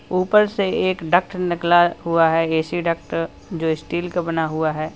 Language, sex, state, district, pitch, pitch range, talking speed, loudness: Hindi, male, Uttar Pradesh, Lalitpur, 170 Hz, 165-175 Hz, 180 wpm, -20 LUFS